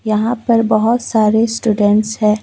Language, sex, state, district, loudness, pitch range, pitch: Hindi, female, West Bengal, Alipurduar, -14 LUFS, 215-230 Hz, 220 Hz